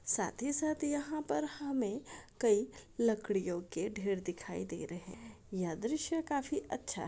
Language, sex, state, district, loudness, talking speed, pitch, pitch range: Hindi, female, Bihar, Araria, -37 LUFS, 160 wpm, 230 Hz, 200-295 Hz